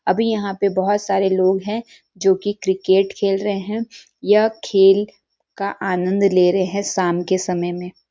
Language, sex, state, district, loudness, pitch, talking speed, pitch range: Hindi, female, Chhattisgarh, Sarguja, -19 LUFS, 195 Hz, 185 wpm, 185-205 Hz